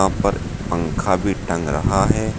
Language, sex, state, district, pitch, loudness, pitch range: Hindi, male, Uttar Pradesh, Saharanpur, 95 Hz, -20 LUFS, 90-100 Hz